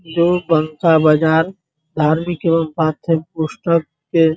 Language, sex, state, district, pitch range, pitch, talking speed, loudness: Hindi, male, Bihar, Muzaffarpur, 155-170 Hz, 160 Hz, 125 wpm, -17 LUFS